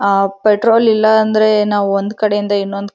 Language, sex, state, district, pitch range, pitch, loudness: Kannada, female, Karnataka, Dharwad, 200-215 Hz, 210 Hz, -13 LUFS